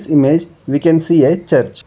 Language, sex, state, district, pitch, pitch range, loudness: English, male, Karnataka, Bangalore, 160 Hz, 145-165 Hz, -13 LUFS